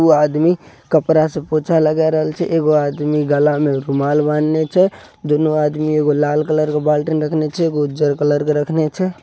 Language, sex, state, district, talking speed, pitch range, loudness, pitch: Maithili, male, Bihar, Samastipur, 260 wpm, 150-155 Hz, -16 LUFS, 150 Hz